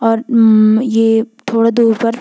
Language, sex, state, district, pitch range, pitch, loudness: Garhwali, female, Uttarakhand, Tehri Garhwal, 225-235 Hz, 225 Hz, -12 LUFS